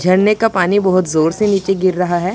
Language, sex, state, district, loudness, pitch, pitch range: Hindi, male, Punjab, Pathankot, -14 LUFS, 185 Hz, 180-200 Hz